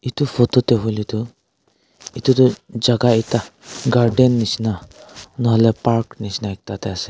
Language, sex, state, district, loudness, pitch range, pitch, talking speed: Nagamese, male, Nagaland, Kohima, -18 LUFS, 110-125 Hz, 115 Hz, 145 wpm